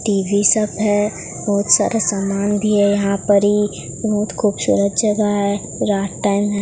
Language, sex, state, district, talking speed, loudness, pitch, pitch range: Hindi, female, Odisha, Sambalpur, 155 wpm, -17 LUFS, 205 Hz, 200-210 Hz